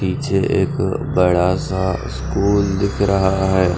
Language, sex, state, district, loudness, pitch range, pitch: Hindi, male, Bihar, Kaimur, -18 LUFS, 90-100 Hz, 95 Hz